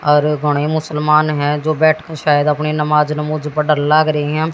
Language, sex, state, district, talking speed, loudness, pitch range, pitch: Hindi, female, Haryana, Jhajjar, 160 wpm, -15 LUFS, 150-155 Hz, 150 Hz